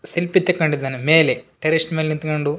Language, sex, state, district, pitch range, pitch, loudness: Kannada, male, Karnataka, Raichur, 150-165 Hz, 155 Hz, -18 LUFS